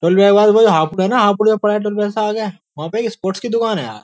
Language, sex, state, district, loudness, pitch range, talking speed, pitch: Hindi, male, Uttar Pradesh, Jyotiba Phule Nagar, -15 LUFS, 190-220 Hz, 250 wpm, 210 Hz